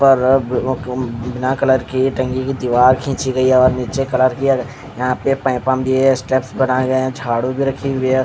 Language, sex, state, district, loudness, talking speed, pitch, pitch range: Hindi, male, Odisha, Khordha, -17 LUFS, 180 wpm, 130 Hz, 125-135 Hz